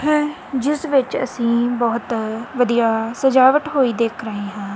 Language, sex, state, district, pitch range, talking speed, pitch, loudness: Punjabi, female, Punjab, Kapurthala, 225-270 Hz, 65 wpm, 240 Hz, -19 LUFS